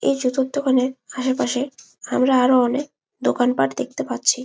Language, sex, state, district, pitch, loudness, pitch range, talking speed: Bengali, female, West Bengal, Malda, 255 Hz, -21 LUFS, 250-265 Hz, 135 wpm